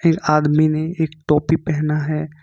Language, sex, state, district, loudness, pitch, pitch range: Hindi, male, Jharkhand, Ranchi, -18 LUFS, 155 Hz, 150-160 Hz